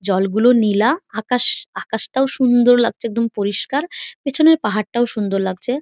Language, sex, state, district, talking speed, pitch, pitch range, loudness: Bengali, female, West Bengal, Malda, 145 wpm, 240 Hz, 210-270 Hz, -17 LUFS